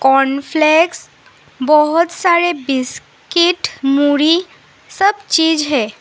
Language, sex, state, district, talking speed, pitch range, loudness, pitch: Hindi, female, Assam, Sonitpur, 80 wpm, 275-345 Hz, -14 LUFS, 310 Hz